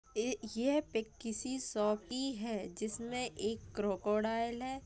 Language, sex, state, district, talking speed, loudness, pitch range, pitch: Hindi, female, Bihar, Gaya, 135 wpm, -37 LUFS, 215-255 Hz, 225 Hz